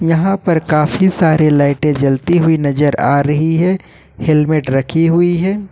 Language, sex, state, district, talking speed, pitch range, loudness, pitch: Hindi, male, Jharkhand, Ranchi, 155 wpm, 145-175 Hz, -13 LUFS, 160 Hz